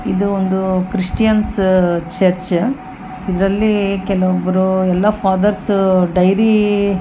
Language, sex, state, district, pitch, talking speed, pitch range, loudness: Kannada, female, Karnataka, Bellary, 190 Hz, 85 wpm, 185-205 Hz, -15 LUFS